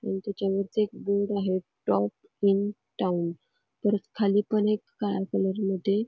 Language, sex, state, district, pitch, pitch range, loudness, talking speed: Marathi, female, Karnataka, Belgaum, 200 Hz, 195-205 Hz, -28 LUFS, 120 wpm